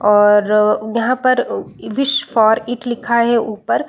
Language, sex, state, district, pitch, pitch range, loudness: Hindi, female, Bihar, Saran, 235 Hz, 210-245 Hz, -15 LUFS